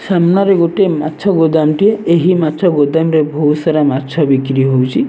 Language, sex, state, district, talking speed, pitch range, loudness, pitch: Odia, male, Odisha, Nuapada, 165 wpm, 150-180 Hz, -12 LUFS, 160 Hz